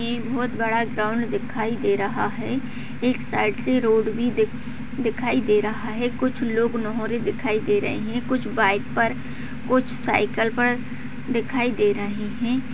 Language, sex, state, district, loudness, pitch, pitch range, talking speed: Hindi, female, Bihar, Jahanabad, -23 LUFS, 235 Hz, 220-245 Hz, 160 wpm